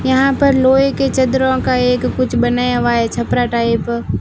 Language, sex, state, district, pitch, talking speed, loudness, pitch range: Hindi, female, Rajasthan, Barmer, 255 Hz, 200 wpm, -15 LUFS, 240-265 Hz